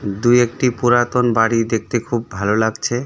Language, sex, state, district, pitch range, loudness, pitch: Bengali, male, West Bengal, Darjeeling, 115-120 Hz, -17 LUFS, 120 Hz